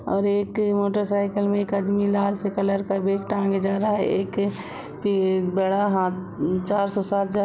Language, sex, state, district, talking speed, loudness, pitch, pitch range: Hindi, female, Uttar Pradesh, Jalaun, 195 wpm, -23 LUFS, 200 Hz, 195-205 Hz